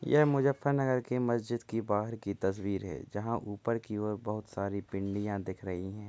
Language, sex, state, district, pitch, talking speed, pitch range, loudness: Hindi, male, Uttar Pradesh, Muzaffarnagar, 105 Hz, 185 wpm, 100-120 Hz, -33 LUFS